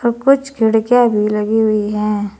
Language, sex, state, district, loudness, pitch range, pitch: Hindi, female, Uttar Pradesh, Saharanpur, -15 LUFS, 210-240 Hz, 220 Hz